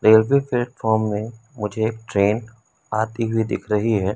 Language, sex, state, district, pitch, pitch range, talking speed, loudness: Hindi, male, Madhya Pradesh, Umaria, 110 Hz, 110-115 Hz, 145 wpm, -21 LUFS